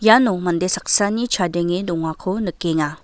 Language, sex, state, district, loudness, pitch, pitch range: Garo, female, Meghalaya, West Garo Hills, -19 LUFS, 180 Hz, 170-205 Hz